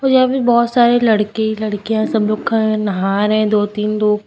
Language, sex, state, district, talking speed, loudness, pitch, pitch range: Hindi, female, Uttar Pradesh, Lucknow, 195 wpm, -15 LUFS, 215 Hz, 210-230 Hz